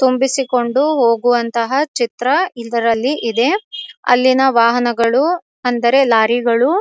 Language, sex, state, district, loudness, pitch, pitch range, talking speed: Kannada, female, Karnataka, Dharwad, -15 LUFS, 245 Hz, 235-270 Hz, 90 wpm